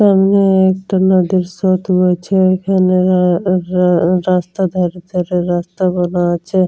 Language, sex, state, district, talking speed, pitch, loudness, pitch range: Bengali, female, West Bengal, Jalpaiguri, 125 wpm, 185 Hz, -14 LUFS, 180-190 Hz